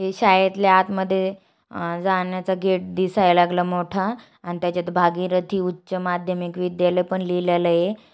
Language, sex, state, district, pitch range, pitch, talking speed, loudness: Marathi, female, Maharashtra, Aurangabad, 180-190 Hz, 185 Hz, 140 wpm, -21 LUFS